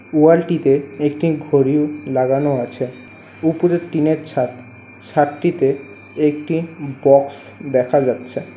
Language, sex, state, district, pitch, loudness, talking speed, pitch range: Bengali, male, West Bengal, Alipurduar, 140 Hz, -18 LUFS, 105 wpm, 130-155 Hz